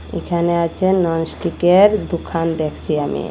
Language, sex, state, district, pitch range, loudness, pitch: Bengali, female, Assam, Hailakandi, 165-180 Hz, -17 LUFS, 170 Hz